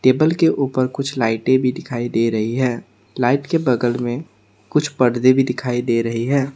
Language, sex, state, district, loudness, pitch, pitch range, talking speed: Hindi, male, Assam, Sonitpur, -19 LUFS, 125 Hz, 120-135 Hz, 190 wpm